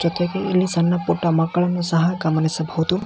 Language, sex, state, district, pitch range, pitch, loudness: Kannada, male, Karnataka, Belgaum, 165-180 Hz, 170 Hz, -20 LUFS